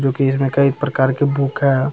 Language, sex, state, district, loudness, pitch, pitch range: Hindi, male, Bihar, Jamui, -17 LUFS, 140 Hz, 135-140 Hz